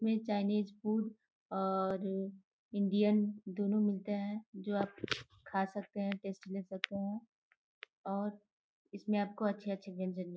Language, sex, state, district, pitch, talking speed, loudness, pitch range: Hindi, female, Uttar Pradesh, Gorakhpur, 200 Hz, 140 wpm, -37 LUFS, 195-210 Hz